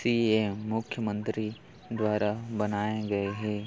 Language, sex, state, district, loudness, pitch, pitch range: Hindi, male, Chhattisgarh, Kabirdham, -30 LUFS, 110 Hz, 105-110 Hz